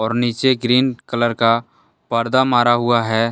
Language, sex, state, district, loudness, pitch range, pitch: Hindi, male, Jharkhand, Deoghar, -17 LUFS, 115-125 Hz, 120 Hz